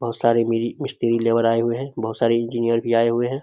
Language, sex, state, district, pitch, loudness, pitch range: Hindi, male, Bihar, Samastipur, 115 Hz, -21 LUFS, 115-120 Hz